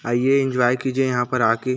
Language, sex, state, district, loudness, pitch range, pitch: Hindi, male, Chhattisgarh, Korba, -20 LUFS, 120-130 Hz, 130 Hz